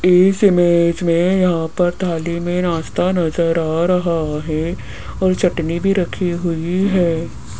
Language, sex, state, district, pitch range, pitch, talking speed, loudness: Hindi, female, Rajasthan, Jaipur, 165-180 Hz, 175 Hz, 140 wpm, -17 LUFS